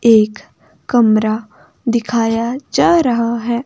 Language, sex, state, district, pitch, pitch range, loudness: Hindi, female, Himachal Pradesh, Shimla, 235 Hz, 220-240 Hz, -15 LUFS